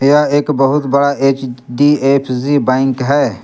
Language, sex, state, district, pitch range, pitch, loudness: Hindi, male, Jharkhand, Garhwa, 130-145 Hz, 140 Hz, -13 LUFS